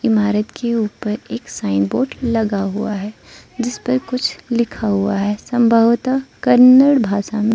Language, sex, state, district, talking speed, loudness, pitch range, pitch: Hindi, female, Arunachal Pradesh, Lower Dibang Valley, 150 wpm, -17 LUFS, 210-245 Hz, 230 Hz